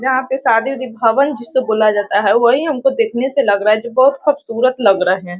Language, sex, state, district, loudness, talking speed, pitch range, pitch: Hindi, female, Bihar, Sitamarhi, -15 LUFS, 235 wpm, 215-265 Hz, 240 Hz